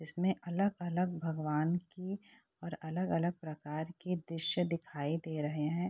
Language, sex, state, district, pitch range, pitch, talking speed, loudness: Hindi, female, Bihar, Purnia, 160-180 Hz, 170 Hz, 130 wpm, -36 LUFS